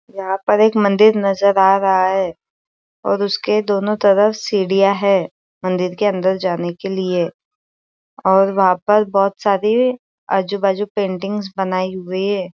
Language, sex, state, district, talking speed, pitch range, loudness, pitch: Hindi, female, Maharashtra, Aurangabad, 150 wpm, 190-205 Hz, -17 LUFS, 195 Hz